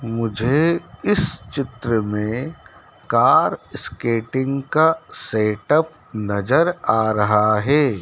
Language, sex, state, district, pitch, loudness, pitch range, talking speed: Hindi, male, Madhya Pradesh, Dhar, 120 Hz, -19 LUFS, 110-150 Hz, 95 wpm